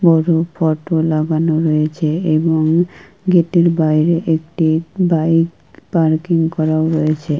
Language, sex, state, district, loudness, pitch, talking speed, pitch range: Bengali, female, West Bengal, Kolkata, -16 LUFS, 160 Hz, 105 wpm, 155-170 Hz